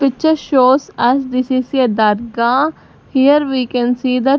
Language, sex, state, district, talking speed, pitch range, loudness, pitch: English, female, Punjab, Fazilka, 175 wpm, 250-275 Hz, -15 LUFS, 260 Hz